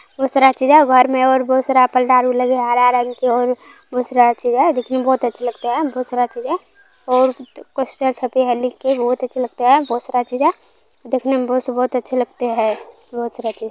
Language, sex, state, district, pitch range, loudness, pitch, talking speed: Maithili, female, Bihar, Kishanganj, 245-265 Hz, -16 LUFS, 255 Hz, 235 wpm